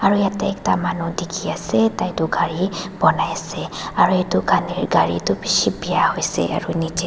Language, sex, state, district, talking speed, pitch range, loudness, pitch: Nagamese, female, Nagaland, Dimapur, 180 wpm, 170-195 Hz, -20 LUFS, 185 Hz